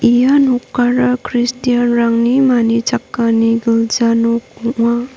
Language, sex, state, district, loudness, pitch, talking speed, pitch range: Garo, female, Meghalaya, North Garo Hills, -14 LUFS, 240 Hz, 95 wpm, 230-245 Hz